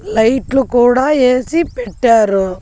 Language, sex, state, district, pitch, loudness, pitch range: Telugu, female, Andhra Pradesh, Annamaya, 250 Hz, -13 LUFS, 225-265 Hz